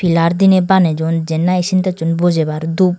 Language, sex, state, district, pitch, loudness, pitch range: Chakma, female, Tripura, Dhalai, 175 Hz, -14 LUFS, 165-185 Hz